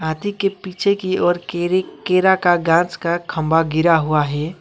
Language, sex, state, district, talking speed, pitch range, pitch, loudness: Hindi, male, West Bengal, Alipurduar, 180 wpm, 165-185 Hz, 175 Hz, -18 LUFS